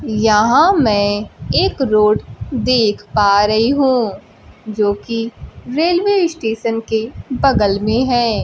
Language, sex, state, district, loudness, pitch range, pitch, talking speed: Hindi, female, Bihar, Kaimur, -15 LUFS, 210-260 Hz, 225 Hz, 115 wpm